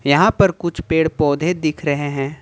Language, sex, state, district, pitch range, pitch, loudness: Hindi, male, Jharkhand, Ranchi, 145-170 Hz, 155 Hz, -18 LUFS